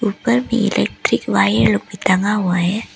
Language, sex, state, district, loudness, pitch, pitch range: Hindi, female, Arunachal Pradesh, Lower Dibang Valley, -17 LUFS, 210 Hz, 185-230 Hz